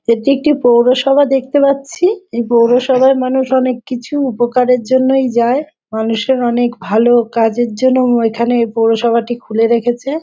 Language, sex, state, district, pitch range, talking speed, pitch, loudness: Bengali, female, West Bengal, Jhargram, 235-265 Hz, 145 wpm, 245 Hz, -13 LUFS